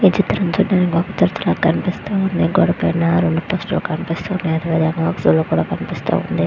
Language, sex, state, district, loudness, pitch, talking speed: Telugu, female, Andhra Pradesh, Visakhapatnam, -18 LUFS, 170 Hz, 155 wpm